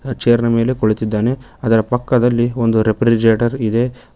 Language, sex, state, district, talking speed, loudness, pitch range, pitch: Kannada, male, Karnataka, Koppal, 130 wpm, -16 LUFS, 115-125 Hz, 120 Hz